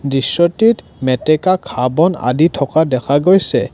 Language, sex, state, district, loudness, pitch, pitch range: Assamese, male, Assam, Kamrup Metropolitan, -14 LUFS, 155 Hz, 130-175 Hz